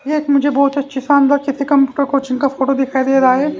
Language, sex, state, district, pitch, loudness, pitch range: Hindi, male, Haryana, Jhajjar, 275 Hz, -15 LUFS, 270-285 Hz